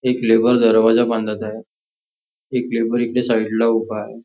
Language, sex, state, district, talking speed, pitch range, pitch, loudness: Marathi, male, Maharashtra, Nagpur, 140 wpm, 110-120 Hz, 115 Hz, -18 LUFS